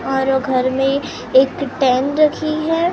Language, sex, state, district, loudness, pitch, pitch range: Hindi, male, Maharashtra, Gondia, -17 LUFS, 270 Hz, 265-305 Hz